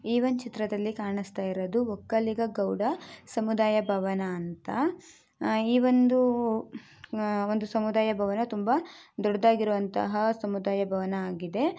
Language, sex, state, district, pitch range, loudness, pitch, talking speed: Kannada, female, Karnataka, Dakshina Kannada, 200-235 Hz, -28 LUFS, 215 Hz, 105 wpm